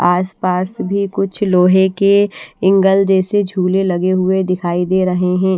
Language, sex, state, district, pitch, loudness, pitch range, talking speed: Hindi, female, Haryana, Rohtak, 190 Hz, -15 LUFS, 185-195 Hz, 150 wpm